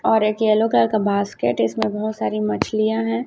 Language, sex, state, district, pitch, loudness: Hindi, female, Chhattisgarh, Raipur, 200 Hz, -20 LUFS